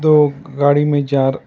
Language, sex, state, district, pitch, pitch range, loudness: Hindi, male, Karnataka, Bangalore, 145 Hz, 140-150 Hz, -15 LUFS